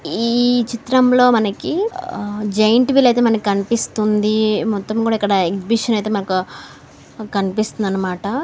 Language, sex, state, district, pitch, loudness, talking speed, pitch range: Telugu, female, Andhra Pradesh, Anantapur, 220 Hz, -17 LUFS, 120 wpm, 205-240 Hz